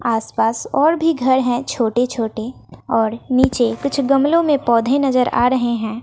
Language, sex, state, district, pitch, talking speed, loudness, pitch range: Hindi, female, Bihar, West Champaran, 250 Hz, 180 wpm, -17 LUFS, 230-275 Hz